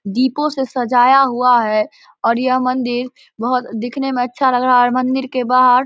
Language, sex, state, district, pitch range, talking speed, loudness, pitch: Hindi, male, Bihar, Samastipur, 245-260 Hz, 205 wpm, -16 LUFS, 255 Hz